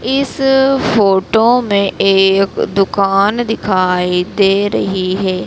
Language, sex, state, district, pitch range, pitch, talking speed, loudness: Hindi, female, Madhya Pradesh, Dhar, 190-225 Hz, 195 Hz, 100 wpm, -13 LUFS